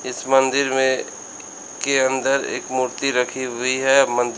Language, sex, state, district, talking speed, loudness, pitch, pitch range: Hindi, male, Uttar Pradesh, Lalitpur, 150 wpm, -19 LUFS, 130 Hz, 130-135 Hz